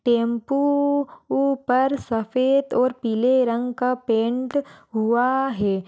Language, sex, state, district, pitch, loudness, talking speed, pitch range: Hindi, female, Rajasthan, Churu, 250 Hz, -22 LUFS, 100 wpm, 235-275 Hz